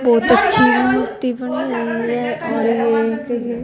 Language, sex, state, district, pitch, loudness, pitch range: Hindi, female, Haryana, Jhajjar, 235 Hz, -17 LUFS, 230-245 Hz